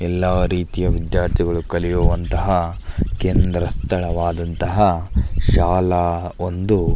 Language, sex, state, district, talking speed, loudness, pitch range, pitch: Kannada, male, Karnataka, Belgaum, 85 wpm, -20 LUFS, 85-90 Hz, 90 Hz